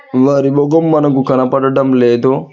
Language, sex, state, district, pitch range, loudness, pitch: Telugu, male, Telangana, Hyderabad, 130-140 Hz, -12 LUFS, 135 Hz